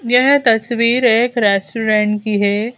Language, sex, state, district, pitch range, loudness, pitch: Hindi, female, Madhya Pradesh, Bhopal, 210-240 Hz, -14 LUFS, 225 Hz